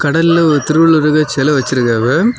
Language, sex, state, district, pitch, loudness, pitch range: Tamil, male, Tamil Nadu, Kanyakumari, 150 Hz, -12 LUFS, 135-165 Hz